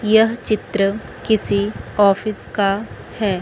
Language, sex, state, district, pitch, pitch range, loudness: Hindi, female, Chandigarh, Chandigarh, 210 Hz, 200-220 Hz, -19 LUFS